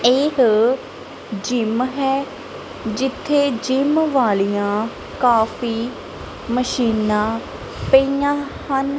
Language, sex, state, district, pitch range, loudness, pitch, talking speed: Punjabi, female, Punjab, Kapurthala, 225-275 Hz, -19 LUFS, 250 Hz, 65 wpm